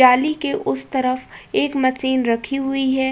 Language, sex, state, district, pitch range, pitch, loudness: Hindi, female, Uttar Pradesh, Budaun, 255-270 Hz, 260 Hz, -20 LUFS